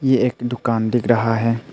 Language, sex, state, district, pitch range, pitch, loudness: Hindi, male, Arunachal Pradesh, Papum Pare, 115-125 Hz, 120 Hz, -19 LUFS